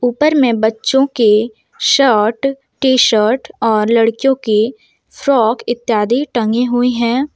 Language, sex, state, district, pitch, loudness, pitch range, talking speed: Hindi, female, Jharkhand, Deoghar, 240 Hz, -14 LUFS, 225-270 Hz, 120 wpm